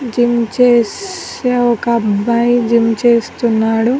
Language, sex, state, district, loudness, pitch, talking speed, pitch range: Telugu, female, Telangana, Karimnagar, -14 LUFS, 235 Hz, 90 wpm, 230-245 Hz